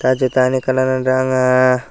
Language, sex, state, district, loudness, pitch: Chakma, male, Tripura, Dhalai, -15 LUFS, 130 Hz